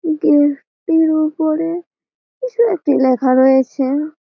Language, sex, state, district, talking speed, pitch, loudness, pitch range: Bengali, female, West Bengal, Malda, 100 wpm, 310 Hz, -15 LUFS, 275-335 Hz